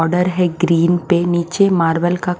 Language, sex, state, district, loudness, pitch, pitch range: Hindi, female, Haryana, Charkhi Dadri, -16 LUFS, 175 Hz, 170-180 Hz